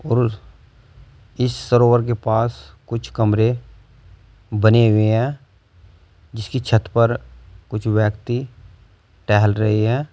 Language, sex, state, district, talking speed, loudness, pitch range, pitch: Hindi, male, Uttar Pradesh, Saharanpur, 115 wpm, -19 LUFS, 105-120 Hz, 110 Hz